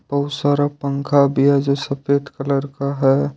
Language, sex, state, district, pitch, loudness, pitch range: Hindi, male, Jharkhand, Ranchi, 140 Hz, -19 LUFS, 140-145 Hz